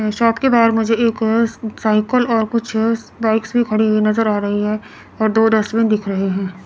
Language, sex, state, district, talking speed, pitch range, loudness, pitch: Hindi, female, Chandigarh, Chandigarh, 190 wpm, 215-230 Hz, -17 LUFS, 220 Hz